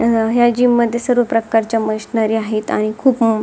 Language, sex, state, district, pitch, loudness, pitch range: Marathi, female, Maharashtra, Dhule, 225 Hz, -16 LUFS, 220-240 Hz